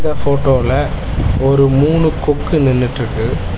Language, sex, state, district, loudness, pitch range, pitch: Tamil, male, Tamil Nadu, Chennai, -14 LUFS, 110-145 Hz, 135 Hz